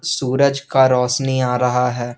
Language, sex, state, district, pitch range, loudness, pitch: Hindi, male, Jharkhand, Garhwa, 125-135 Hz, -17 LUFS, 130 Hz